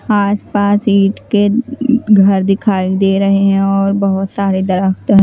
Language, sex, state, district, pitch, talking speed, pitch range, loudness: Hindi, female, Bihar, West Champaran, 195 Hz, 150 wpm, 195-205 Hz, -13 LUFS